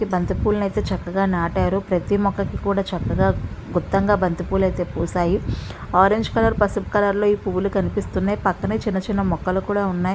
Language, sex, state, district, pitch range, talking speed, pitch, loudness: Telugu, female, Andhra Pradesh, Visakhapatnam, 185-205 Hz, 170 wpm, 195 Hz, -21 LUFS